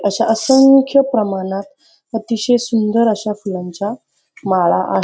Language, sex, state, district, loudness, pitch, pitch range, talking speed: Marathi, female, Maharashtra, Pune, -15 LUFS, 225 Hz, 205-260 Hz, 120 wpm